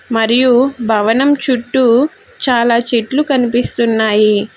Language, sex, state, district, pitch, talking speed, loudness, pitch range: Telugu, female, Telangana, Hyderabad, 245 Hz, 80 wpm, -13 LUFS, 225-260 Hz